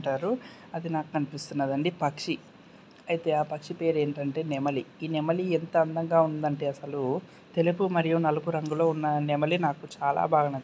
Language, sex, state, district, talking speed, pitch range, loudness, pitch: Telugu, male, Karnataka, Dharwad, 150 wpm, 145-165 Hz, -28 LUFS, 155 Hz